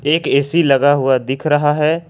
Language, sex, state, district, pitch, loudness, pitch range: Hindi, male, Jharkhand, Ranchi, 145 Hz, -15 LUFS, 135-155 Hz